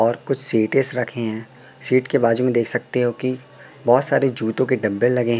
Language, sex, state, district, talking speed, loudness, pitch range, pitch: Hindi, male, Madhya Pradesh, Katni, 210 wpm, -18 LUFS, 115-130 Hz, 125 Hz